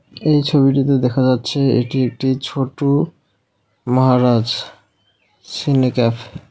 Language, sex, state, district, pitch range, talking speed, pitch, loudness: Bengali, male, West Bengal, Alipurduar, 125-140 Hz, 100 wpm, 130 Hz, -17 LUFS